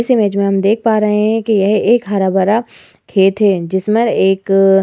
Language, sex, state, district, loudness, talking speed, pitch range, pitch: Hindi, female, Uttar Pradesh, Muzaffarnagar, -13 LUFS, 235 wpm, 195-220 Hz, 205 Hz